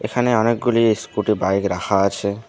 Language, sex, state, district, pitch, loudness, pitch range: Bengali, male, West Bengal, Alipurduar, 105 Hz, -19 LUFS, 100-115 Hz